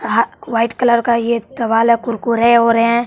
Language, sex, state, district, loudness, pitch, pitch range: Hindi, male, Bihar, West Champaran, -15 LUFS, 235 Hz, 230-235 Hz